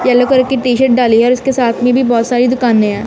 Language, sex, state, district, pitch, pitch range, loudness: Hindi, female, Punjab, Kapurthala, 245 Hz, 235-255 Hz, -11 LUFS